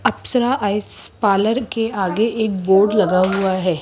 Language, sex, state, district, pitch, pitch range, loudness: Hindi, male, Rajasthan, Jaipur, 205 Hz, 190-225 Hz, -18 LUFS